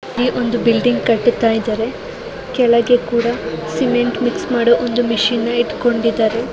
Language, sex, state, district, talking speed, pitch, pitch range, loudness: Kannada, female, Karnataka, Raichur, 130 wpm, 240 Hz, 230-245 Hz, -16 LUFS